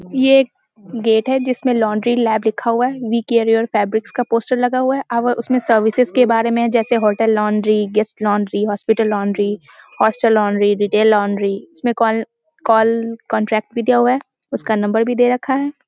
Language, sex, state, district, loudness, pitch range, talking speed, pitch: Hindi, female, Bihar, Muzaffarpur, -16 LUFS, 215-245 Hz, 195 wpm, 225 Hz